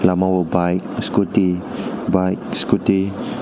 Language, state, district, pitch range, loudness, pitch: Kokborok, Tripura, West Tripura, 90-95 Hz, -19 LUFS, 95 Hz